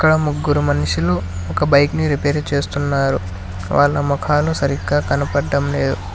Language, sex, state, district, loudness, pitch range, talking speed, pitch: Telugu, male, Telangana, Hyderabad, -18 LUFS, 90-145 Hz, 115 wpm, 140 Hz